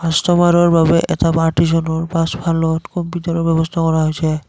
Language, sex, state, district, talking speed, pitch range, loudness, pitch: Assamese, male, Assam, Kamrup Metropolitan, 105 wpm, 160-170 Hz, -16 LUFS, 165 Hz